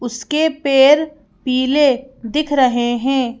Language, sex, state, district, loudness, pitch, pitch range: Hindi, female, Madhya Pradesh, Bhopal, -16 LUFS, 265 Hz, 245-290 Hz